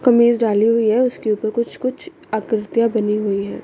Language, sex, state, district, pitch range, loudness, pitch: Hindi, female, Chandigarh, Chandigarh, 215-240 Hz, -18 LUFS, 230 Hz